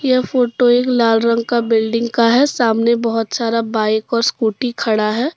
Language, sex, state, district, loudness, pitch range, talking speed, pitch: Hindi, female, Jharkhand, Deoghar, -16 LUFS, 225-245 Hz, 190 wpm, 235 Hz